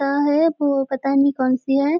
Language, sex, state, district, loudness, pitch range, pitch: Hindi, female, Maharashtra, Nagpur, -19 LUFS, 270-290 Hz, 275 Hz